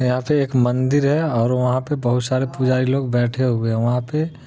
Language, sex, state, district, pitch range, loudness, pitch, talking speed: Hindi, male, Bihar, Muzaffarpur, 125-140 Hz, -19 LUFS, 130 Hz, 230 wpm